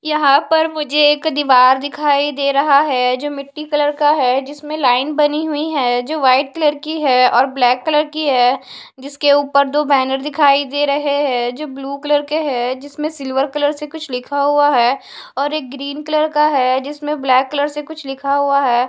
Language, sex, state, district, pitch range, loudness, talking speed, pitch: Hindi, female, Odisha, Khordha, 265-295 Hz, -16 LUFS, 205 wpm, 285 Hz